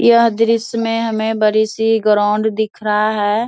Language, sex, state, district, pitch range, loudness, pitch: Hindi, female, Bihar, Saharsa, 215-225 Hz, -15 LUFS, 220 Hz